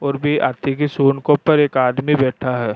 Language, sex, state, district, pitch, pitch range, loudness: Rajasthani, male, Rajasthan, Churu, 140 Hz, 130-145 Hz, -17 LUFS